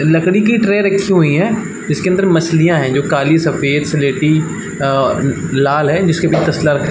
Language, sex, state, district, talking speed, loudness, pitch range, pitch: Hindi, male, Chhattisgarh, Balrampur, 165 wpm, -13 LUFS, 150-185 Hz, 160 Hz